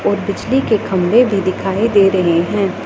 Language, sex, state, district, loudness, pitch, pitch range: Hindi, female, Punjab, Pathankot, -15 LUFS, 200 Hz, 185-220 Hz